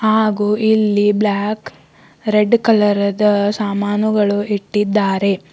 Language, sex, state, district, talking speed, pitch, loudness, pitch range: Kannada, female, Karnataka, Bidar, 75 wpm, 210 Hz, -16 LUFS, 205-215 Hz